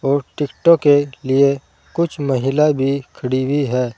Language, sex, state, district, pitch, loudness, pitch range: Hindi, male, Uttar Pradesh, Saharanpur, 140 Hz, -17 LUFS, 130-145 Hz